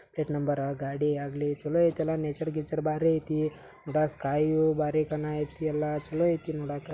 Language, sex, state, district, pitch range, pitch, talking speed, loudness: Kannada, male, Karnataka, Belgaum, 145-155 Hz, 155 Hz, 190 wpm, -29 LUFS